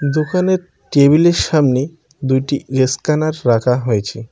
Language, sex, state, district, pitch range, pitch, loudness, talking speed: Bengali, male, West Bengal, Cooch Behar, 130-155 Hz, 140 Hz, -15 LUFS, 95 wpm